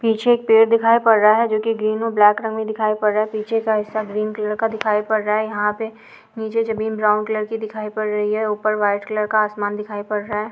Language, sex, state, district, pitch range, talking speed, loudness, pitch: Hindi, female, Chhattisgarh, Balrampur, 210-220 Hz, 270 wpm, -19 LUFS, 215 Hz